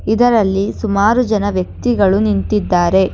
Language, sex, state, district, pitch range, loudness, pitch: Kannada, female, Karnataka, Bangalore, 190-220 Hz, -14 LUFS, 205 Hz